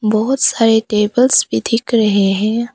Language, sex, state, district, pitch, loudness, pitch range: Hindi, female, Arunachal Pradesh, Papum Pare, 220 Hz, -14 LUFS, 210-235 Hz